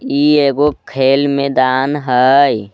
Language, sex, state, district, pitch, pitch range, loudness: Magahi, male, Jharkhand, Palamu, 140 Hz, 130-145 Hz, -13 LUFS